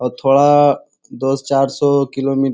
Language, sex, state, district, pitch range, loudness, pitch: Hindi, male, Bihar, Jamui, 135-140 Hz, -15 LUFS, 135 Hz